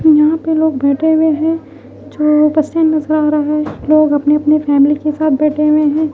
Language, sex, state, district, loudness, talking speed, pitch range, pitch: Hindi, female, Bihar, Katihar, -13 LUFS, 195 wpm, 300-310 Hz, 300 Hz